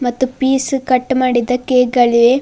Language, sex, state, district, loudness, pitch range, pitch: Kannada, female, Karnataka, Bidar, -14 LUFS, 245-260 Hz, 255 Hz